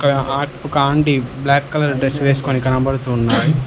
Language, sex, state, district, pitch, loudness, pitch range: Telugu, male, Telangana, Hyderabad, 140 Hz, -17 LUFS, 130-145 Hz